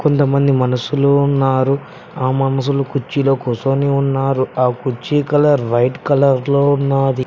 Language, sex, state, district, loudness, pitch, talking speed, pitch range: Telugu, male, Telangana, Mahabubabad, -16 LUFS, 135 Hz, 115 wpm, 130-140 Hz